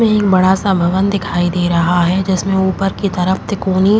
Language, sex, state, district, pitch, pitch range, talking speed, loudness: Hindi, female, Uttar Pradesh, Jalaun, 190 Hz, 180-195 Hz, 225 wpm, -14 LUFS